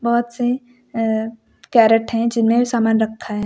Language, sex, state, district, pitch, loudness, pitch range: Hindi, female, Uttar Pradesh, Lucknow, 230 Hz, -18 LUFS, 225-240 Hz